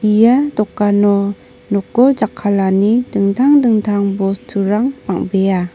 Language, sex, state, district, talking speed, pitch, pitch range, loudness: Garo, female, Meghalaya, North Garo Hills, 85 wpm, 205 Hz, 200-240 Hz, -14 LUFS